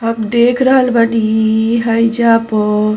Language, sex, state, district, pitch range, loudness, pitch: Bhojpuri, female, Uttar Pradesh, Ghazipur, 220-235 Hz, -12 LUFS, 230 Hz